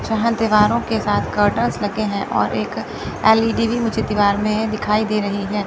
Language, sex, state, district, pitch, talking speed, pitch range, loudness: Hindi, female, Chandigarh, Chandigarh, 215 Hz, 190 wpm, 205-225 Hz, -19 LUFS